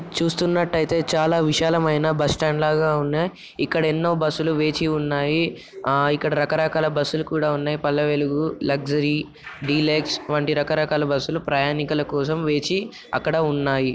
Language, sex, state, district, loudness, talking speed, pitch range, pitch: Telugu, male, Telangana, Nalgonda, -22 LUFS, 150 wpm, 145-160 Hz, 155 Hz